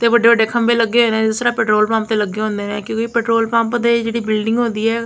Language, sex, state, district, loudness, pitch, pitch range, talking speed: Punjabi, female, Punjab, Kapurthala, -16 LUFS, 230 Hz, 220-235 Hz, 270 wpm